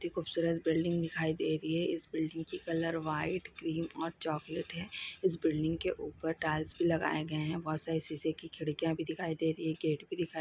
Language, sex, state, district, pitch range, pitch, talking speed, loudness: Hindi, female, Chhattisgarh, Sukma, 155-165 Hz, 165 Hz, 195 wpm, -35 LUFS